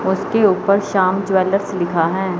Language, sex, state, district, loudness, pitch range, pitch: Hindi, female, Chandigarh, Chandigarh, -17 LUFS, 185-200 Hz, 190 Hz